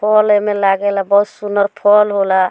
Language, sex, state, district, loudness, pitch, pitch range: Bhojpuri, female, Bihar, Muzaffarpur, -14 LUFS, 205 Hz, 200-210 Hz